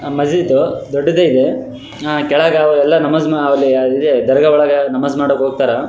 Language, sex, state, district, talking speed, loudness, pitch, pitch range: Kannada, male, Karnataka, Raichur, 90 wpm, -13 LUFS, 145 Hz, 140-150 Hz